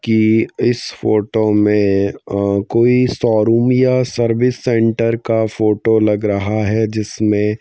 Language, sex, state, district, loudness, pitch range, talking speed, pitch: Hindi, male, Madhya Pradesh, Bhopal, -15 LUFS, 105-115 Hz, 125 wpm, 110 Hz